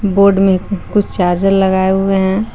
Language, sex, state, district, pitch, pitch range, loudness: Hindi, female, Jharkhand, Palamu, 195 Hz, 190-200 Hz, -13 LUFS